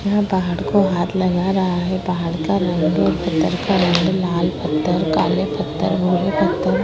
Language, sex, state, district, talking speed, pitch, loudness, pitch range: Hindi, female, Uttar Pradesh, Hamirpur, 175 wpm, 180 Hz, -19 LUFS, 175-190 Hz